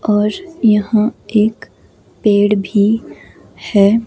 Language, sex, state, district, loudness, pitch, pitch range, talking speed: Hindi, female, Himachal Pradesh, Shimla, -15 LUFS, 210 Hz, 205-225 Hz, 90 wpm